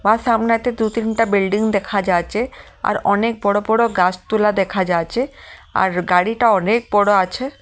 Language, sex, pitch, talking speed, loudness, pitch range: Bengali, female, 210 Hz, 165 wpm, -18 LUFS, 195-230 Hz